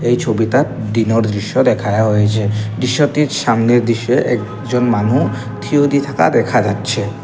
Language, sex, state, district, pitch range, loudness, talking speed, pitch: Bengali, male, Assam, Kamrup Metropolitan, 105-125 Hz, -15 LUFS, 125 wpm, 115 Hz